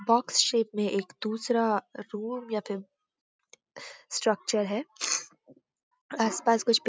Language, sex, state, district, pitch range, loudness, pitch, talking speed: Hindi, female, Uttarakhand, Uttarkashi, 210-245 Hz, -28 LUFS, 225 Hz, 115 wpm